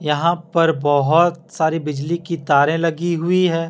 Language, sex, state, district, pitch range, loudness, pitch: Hindi, male, Jharkhand, Deoghar, 150-170 Hz, -18 LUFS, 165 Hz